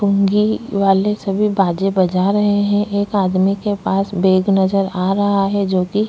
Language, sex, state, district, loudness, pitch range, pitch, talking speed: Hindi, female, Chhattisgarh, Korba, -16 LUFS, 190-205 Hz, 195 Hz, 175 wpm